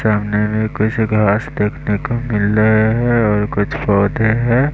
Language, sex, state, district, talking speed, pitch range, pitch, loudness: Hindi, male, Bihar, West Champaran, 165 wpm, 105-115 Hz, 110 Hz, -16 LUFS